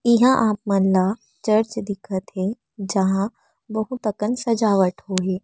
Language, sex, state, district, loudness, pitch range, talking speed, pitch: Chhattisgarhi, female, Chhattisgarh, Rajnandgaon, -21 LUFS, 190-225 Hz, 130 wpm, 210 Hz